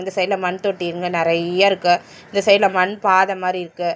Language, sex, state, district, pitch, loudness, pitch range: Tamil, male, Tamil Nadu, Chennai, 185 Hz, -18 LUFS, 175-195 Hz